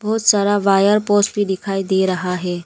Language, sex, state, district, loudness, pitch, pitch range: Hindi, female, Arunachal Pradesh, Lower Dibang Valley, -17 LUFS, 195 Hz, 190-205 Hz